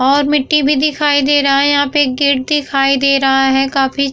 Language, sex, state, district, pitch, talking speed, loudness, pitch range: Hindi, female, Bihar, Vaishali, 280 Hz, 230 wpm, -12 LUFS, 275-290 Hz